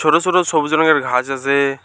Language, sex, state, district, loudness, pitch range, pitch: Bengali, male, West Bengal, Alipurduar, -16 LUFS, 135-160 Hz, 145 Hz